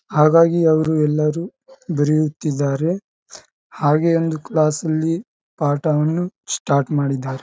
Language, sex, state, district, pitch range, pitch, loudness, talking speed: Kannada, male, Karnataka, Bijapur, 150-165 Hz, 155 Hz, -19 LUFS, 90 wpm